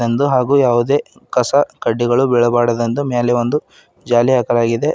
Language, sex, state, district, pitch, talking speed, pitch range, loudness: Kannada, male, Karnataka, Bidar, 120 Hz, 120 wpm, 120-135 Hz, -15 LUFS